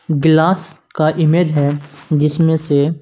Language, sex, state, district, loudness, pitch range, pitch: Hindi, male, Punjab, Kapurthala, -15 LUFS, 145-160 Hz, 155 Hz